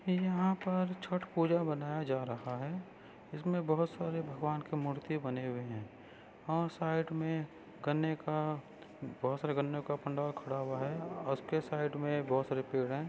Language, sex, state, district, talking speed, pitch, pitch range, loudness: Hindi, female, Maharashtra, Sindhudurg, 170 wpm, 150 Hz, 135-165 Hz, -36 LUFS